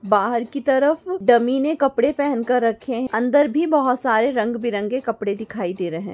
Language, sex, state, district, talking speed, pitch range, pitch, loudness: Hindi, female, Maharashtra, Chandrapur, 225 wpm, 220-275 Hz, 245 Hz, -20 LUFS